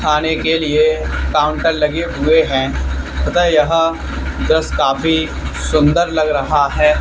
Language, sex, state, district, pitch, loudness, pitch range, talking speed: Hindi, male, Haryana, Charkhi Dadri, 150 Hz, -15 LUFS, 135-160 Hz, 130 wpm